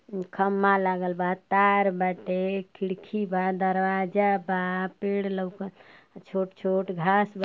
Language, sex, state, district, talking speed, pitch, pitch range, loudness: Bhojpuri, female, Uttar Pradesh, Ghazipur, 120 wpm, 190 Hz, 185-195 Hz, -26 LUFS